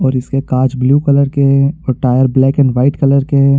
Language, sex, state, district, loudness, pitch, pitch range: Hindi, male, Chhattisgarh, Rajnandgaon, -12 LUFS, 135 Hz, 130-140 Hz